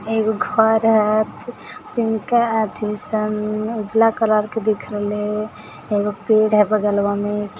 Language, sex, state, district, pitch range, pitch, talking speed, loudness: Hindi, female, Bihar, Samastipur, 210-220 Hz, 215 Hz, 135 wpm, -19 LUFS